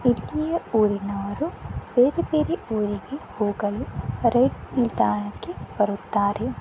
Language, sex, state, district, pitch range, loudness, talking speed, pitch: Kannada, female, Karnataka, Dakshina Kannada, 205-260 Hz, -24 LUFS, 90 wpm, 220 Hz